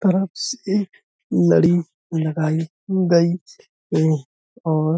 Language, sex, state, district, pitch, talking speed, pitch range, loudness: Hindi, male, Uttar Pradesh, Budaun, 170 Hz, 70 wpm, 155-190 Hz, -20 LUFS